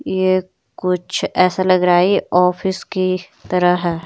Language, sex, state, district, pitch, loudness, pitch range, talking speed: Hindi, female, Himachal Pradesh, Shimla, 185 Hz, -17 LUFS, 180-185 Hz, 160 wpm